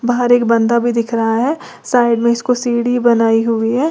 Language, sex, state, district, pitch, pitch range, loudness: Hindi, female, Uttar Pradesh, Lalitpur, 235 Hz, 230-245 Hz, -14 LUFS